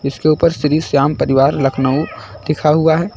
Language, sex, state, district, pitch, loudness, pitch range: Hindi, male, Uttar Pradesh, Lucknow, 150 Hz, -15 LUFS, 135-155 Hz